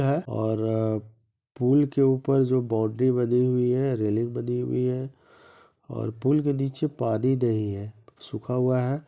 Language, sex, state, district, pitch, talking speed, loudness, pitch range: Hindi, male, Bihar, East Champaran, 125 Hz, 160 wpm, -25 LUFS, 110-135 Hz